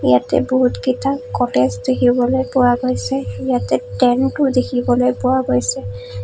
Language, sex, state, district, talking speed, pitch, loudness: Assamese, female, Assam, Kamrup Metropolitan, 105 wpm, 245 Hz, -17 LUFS